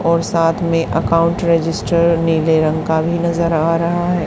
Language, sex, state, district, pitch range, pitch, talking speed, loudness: Hindi, female, Haryana, Charkhi Dadri, 165-170 Hz, 165 Hz, 180 wpm, -16 LUFS